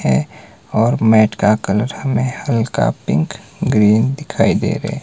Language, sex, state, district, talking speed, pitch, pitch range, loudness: Hindi, male, Himachal Pradesh, Shimla, 145 wpm, 115 Hz, 105-130 Hz, -16 LUFS